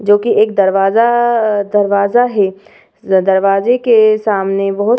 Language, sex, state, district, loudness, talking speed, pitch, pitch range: Hindi, female, Uttar Pradesh, Hamirpur, -12 LUFS, 130 wpm, 205 Hz, 195-230 Hz